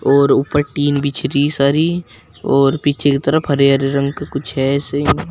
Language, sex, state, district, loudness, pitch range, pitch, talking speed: Hindi, male, Uttar Pradesh, Shamli, -16 LUFS, 140-145 Hz, 140 Hz, 180 wpm